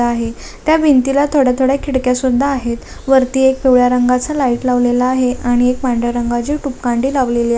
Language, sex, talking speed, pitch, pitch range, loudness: Marathi, female, 180 wpm, 255 Hz, 245-270 Hz, -14 LUFS